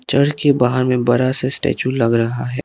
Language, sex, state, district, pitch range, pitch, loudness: Hindi, male, Arunachal Pradesh, Lower Dibang Valley, 120-135 Hz, 130 Hz, -16 LUFS